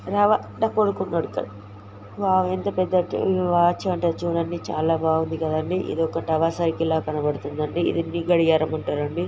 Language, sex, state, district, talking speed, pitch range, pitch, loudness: Telugu, female, Andhra Pradesh, Guntur, 135 wpm, 160-185 Hz, 165 Hz, -23 LUFS